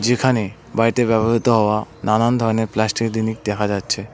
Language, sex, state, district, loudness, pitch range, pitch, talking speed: Bengali, male, West Bengal, Cooch Behar, -19 LUFS, 105-115 Hz, 110 Hz, 145 wpm